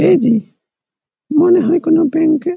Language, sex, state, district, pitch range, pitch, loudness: Bengali, male, West Bengal, Malda, 300-350 Hz, 320 Hz, -13 LUFS